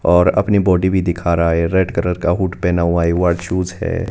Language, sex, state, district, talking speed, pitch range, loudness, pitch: Hindi, male, Himachal Pradesh, Shimla, 250 wpm, 85-95 Hz, -16 LUFS, 90 Hz